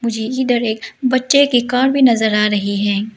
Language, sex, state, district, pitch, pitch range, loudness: Hindi, female, Arunachal Pradesh, Lower Dibang Valley, 235 Hz, 215-255 Hz, -15 LUFS